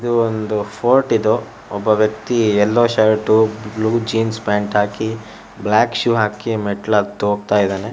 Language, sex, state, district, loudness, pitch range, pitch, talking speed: Kannada, male, Karnataka, Shimoga, -17 LUFS, 105-115 Hz, 110 Hz, 130 wpm